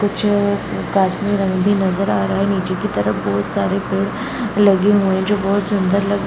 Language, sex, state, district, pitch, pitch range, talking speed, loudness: Hindi, female, Bihar, Bhagalpur, 195 Hz, 190-205 Hz, 220 wpm, -17 LUFS